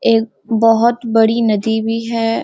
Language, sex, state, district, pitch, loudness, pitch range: Hindi, female, Uttarakhand, Uttarkashi, 225 Hz, -15 LUFS, 225-230 Hz